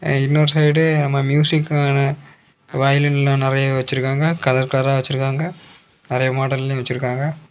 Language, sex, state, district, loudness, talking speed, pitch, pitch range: Tamil, male, Tamil Nadu, Kanyakumari, -18 LUFS, 105 wpm, 140 Hz, 135-150 Hz